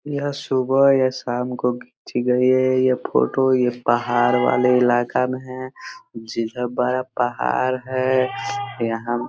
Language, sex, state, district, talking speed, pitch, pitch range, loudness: Hindi, male, Bihar, Sitamarhi, 140 wpm, 125 Hz, 120-130 Hz, -20 LUFS